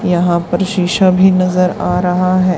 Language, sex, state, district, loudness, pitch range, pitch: Hindi, female, Haryana, Charkhi Dadri, -13 LUFS, 180-185 Hz, 180 Hz